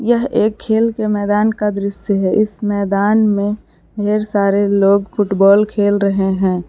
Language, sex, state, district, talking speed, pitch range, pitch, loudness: Hindi, female, Jharkhand, Palamu, 160 wpm, 200-215 Hz, 205 Hz, -15 LUFS